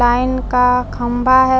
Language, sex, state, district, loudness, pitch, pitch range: Hindi, female, Jharkhand, Palamu, -15 LUFS, 250 Hz, 245-255 Hz